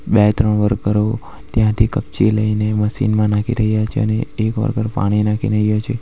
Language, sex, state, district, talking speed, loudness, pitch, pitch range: Gujarati, male, Gujarat, Valsad, 170 wpm, -17 LUFS, 110 Hz, 105-110 Hz